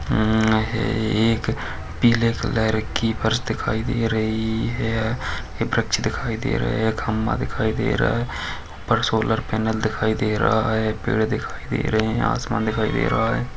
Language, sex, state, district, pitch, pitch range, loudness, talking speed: Hindi, male, Chhattisgarh, Sukma, 110 Hz, 110-115 Hz, -22 LUFS, 175 wpm